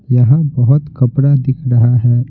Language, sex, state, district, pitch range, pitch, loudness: Hindi, male, Bihar, Patna, 120-140 Hz, 130 Hz, -12 LUFS